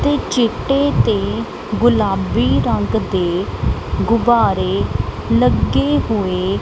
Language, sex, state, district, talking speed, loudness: Punjabi, female, Punjab, Kapurthala, 80 wpm, -17 LUFS